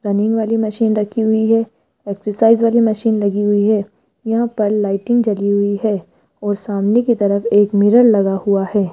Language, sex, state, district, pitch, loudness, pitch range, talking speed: Hindi, female, Rajasthan, Jaipur, 210 Hz, -16 LUFS, 200-225 Hz, 180 wpm